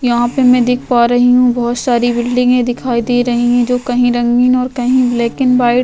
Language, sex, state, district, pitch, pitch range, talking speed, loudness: Hindi, female, Chhattisgarh, Korba, 245 Hz, 240-250 Hz, 235 wpm, -12 LUFS